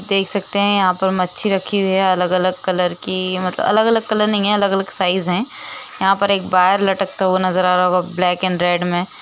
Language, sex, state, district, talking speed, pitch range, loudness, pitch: Hindi, female, Uttar Pradesh, Jalaun, 220 wpm, 180-200 Hz, -17 LUFS, 190 Hz